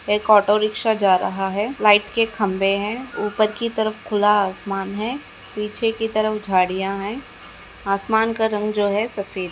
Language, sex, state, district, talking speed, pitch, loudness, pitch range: Hindi, female, Rajasthan, Nagaur, 175 wpm, 210 Hz, -20 LUFS, 200-220 Hz